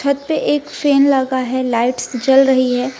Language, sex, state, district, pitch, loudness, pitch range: Hindi, female, West Bengal, Alipurduar, 260 Hz, -15 LUFS, 250-280 Hz